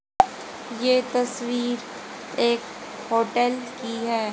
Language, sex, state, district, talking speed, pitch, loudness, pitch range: Hindi, female, Haryana, Jhajjar, 85 wpm, 240 Hz, -25 LUFS, 235-250 Hz